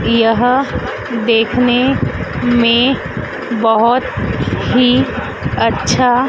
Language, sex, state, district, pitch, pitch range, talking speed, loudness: Hindi, female, Madhya Pradesh, Dhar, 245 Hz, 230-250 Hz, 55 wpm, -14 LUFS